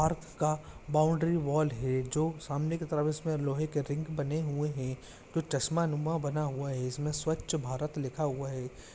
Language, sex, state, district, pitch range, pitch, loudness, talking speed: Hindi, male, Andhra Pradesh, Visakhapatnam, 140-155 Hz, 150 Hz, -33 LUFS, 190 wpm